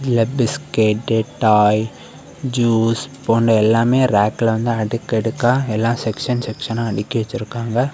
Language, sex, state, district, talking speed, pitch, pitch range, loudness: Tamil, male, Tamil Nadu, Kanyakumari, 105 wpm, 115 Hz, 110-120 Hz, -18 LUFS